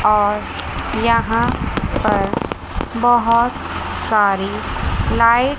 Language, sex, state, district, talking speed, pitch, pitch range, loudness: Hindi, female, Chandigarh, Chandigarh, 75 wpm, 230 Hz, 210-240 Hz, -18 LUFS